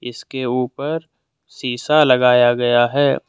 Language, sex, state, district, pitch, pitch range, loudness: Hindi, male, Jharkhand, Deoghar, 125 Hz, 120-140 Hz, -16 LUFS